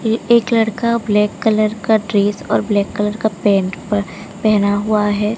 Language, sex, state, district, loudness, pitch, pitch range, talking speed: Hindi, female, Odisha, Sambalpur, -16 LUFS, 210 Hz, 205-220 Hz, 180 wpm